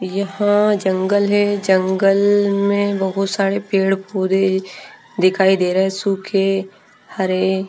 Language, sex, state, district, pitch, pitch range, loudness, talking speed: Hindi, female, Maharashtra, Gondia, 195 Hz, 190-200 Hz, -17 LUFS, 115 wpm